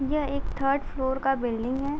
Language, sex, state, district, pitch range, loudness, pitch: Hindi, female, Uttar Pradesh, Gorakhpur, 265-280 Hz, -28 LUFS, 270 Hz